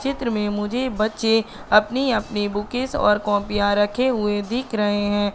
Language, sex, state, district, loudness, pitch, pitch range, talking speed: Hindi, female, Madhya Pradesh, Katni, -21 LUFS, 215 Hz, 205-245 Hz, 155 wpm